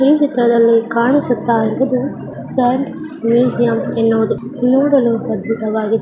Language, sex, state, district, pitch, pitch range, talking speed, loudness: Kannada, female, Karnataka, Mysore, 240 Hz, 230-265 Hz, 100 wpm, -15 LUFS